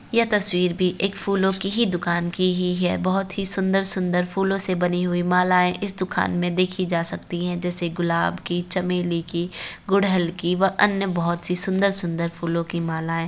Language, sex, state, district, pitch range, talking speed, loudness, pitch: Hindi, female, Uttar Pradesh, Varanasi, 175-195 Hz, 190 wpm, -21 LUFS, 180 Hz